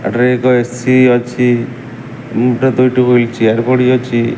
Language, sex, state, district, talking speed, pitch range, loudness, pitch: Odia, male, Odisha, Malkangiri, 135 wpm, 120-125 Hz, -12 LUFS, 125 Hz